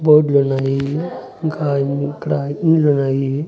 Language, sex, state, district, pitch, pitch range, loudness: Telugu, male, Andhra Pradesh, Annamaya, 145 Hz, 140-155 Hz, -17 LUFS